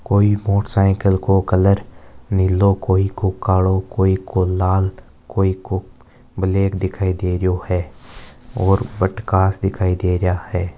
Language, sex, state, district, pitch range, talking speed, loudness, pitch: Marwari, male, Rajasthan, Nagaur, 95-100 Hz, 145 wpm, -18 LUFS, 95 Hz